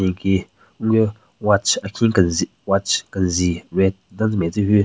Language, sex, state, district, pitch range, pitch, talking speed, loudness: Rengma, male, Nagaland, Kohima, 95-105 Hz, 95 Hz, 150 wpm, -20 LUFS